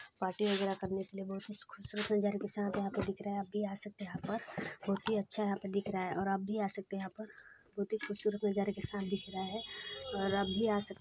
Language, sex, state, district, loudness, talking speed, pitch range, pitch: Hindi, female, Chhattisgarh, Balrampur, -37 LUFS, 285 wpm, 195-210 Hz, 200 Hz